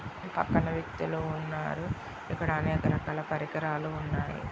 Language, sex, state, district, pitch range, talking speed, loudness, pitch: Telugu, female, Andhra Pradesh, Srikakulam, 150-155 Hz, 105 wpm, -32 LUFS, 155 Hz